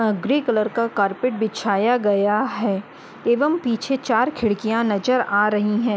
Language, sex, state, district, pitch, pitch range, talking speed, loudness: Hindi, female, Uttar Pradesh, Muzaffarnagar, 225 Hz, 210-250 Hz, 160 wpm, -21 LUFS